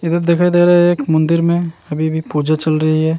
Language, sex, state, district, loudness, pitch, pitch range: Hindi, male, Uttarakhand, Tehri Garhwal, -14 LUFS, 165 Hz, 155-170 Hz